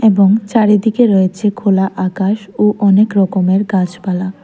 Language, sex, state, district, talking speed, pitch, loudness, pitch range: Bengali, female, Tripura, West Tripura, 120 wpm, 200 Hz, -13 LUFS, 190-210 Hz